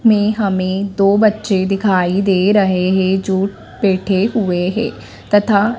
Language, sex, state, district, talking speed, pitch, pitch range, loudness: Hindi, female, Madhya Pradesh, Dhar, 135 wpm, 195 Hz, 190-205 Hz, -15 LUFS